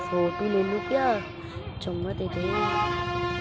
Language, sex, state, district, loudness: Hindi, male, Uttar Pradesh, Budaun, -27 LUFS